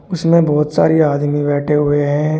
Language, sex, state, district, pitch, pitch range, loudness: Hindi, male, Uttar Pradesh, Shamli, 150 Hz, 145-155 Hz, -14 LUFS